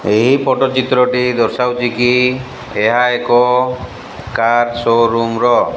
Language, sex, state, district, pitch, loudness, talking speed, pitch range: Odia, male, Odisha, Malkangiri, 125 Hz, -14 LUFS, 105 wpm, 115-125 Hz